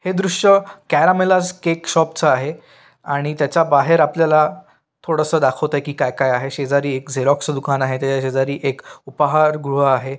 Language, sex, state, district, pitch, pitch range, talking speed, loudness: Marathi, male, Maharashtra, Pune, 145 Hz, 135-165 Hz, 165 wpm, -17 LUFS